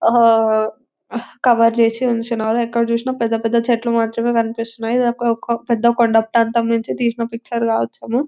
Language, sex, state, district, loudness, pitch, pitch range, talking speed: Telugu, female, Telangana, Nalgonda, -17 LUFS, 230 Hz, 230-235 Hz, 70 wpm